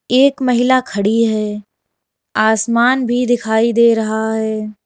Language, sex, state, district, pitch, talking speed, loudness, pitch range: Hindi, female, Uttar Pradesh, Lalitpur, 230 Hz, 125 wpm, -15 LUFS, 220-245 Hz